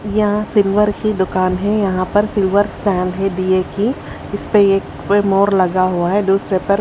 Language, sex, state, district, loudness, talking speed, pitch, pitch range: Hindi, female, Haryana, Charkhi Dadri, -16 LUFS, 185 wpm, 200 Hz, 185-205 Hz